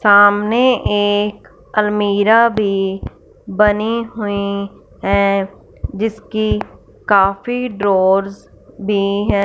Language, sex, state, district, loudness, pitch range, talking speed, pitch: Hindi, female, Punjab, Fazilka, -16 LUFS, 200-215 Hz, 75 wpm, 205 Hz